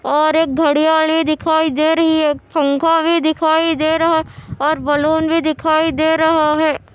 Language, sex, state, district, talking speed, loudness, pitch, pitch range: Hindi, male, Andhra Pradesh, Anantapur, 175 wpm, -15 LUFS, 315 Hz, 305-320 Hz